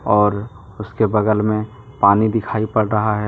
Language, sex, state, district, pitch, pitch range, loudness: Hindi, male, Jharkhand, Deoghar, 105 Hz, 105-110 Hz, -17 LUFS